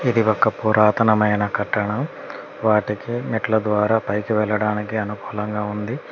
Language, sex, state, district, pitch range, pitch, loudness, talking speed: Telugu, male, Telangana, Mahabubabad, 105-110 Hz, 105 Hz, -20 LUFS, 110 wpm